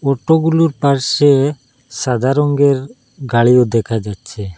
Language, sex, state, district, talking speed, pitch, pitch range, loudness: Bengali, male, Assam, Hailakandi, 105 wpm, 130 Hz, 120-145 Hz, -14 LUFS